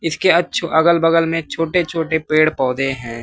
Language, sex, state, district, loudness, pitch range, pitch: Hindi, male, Bihar, West Champaran, -17 LUFS, 150-165 Hz, 165 Hz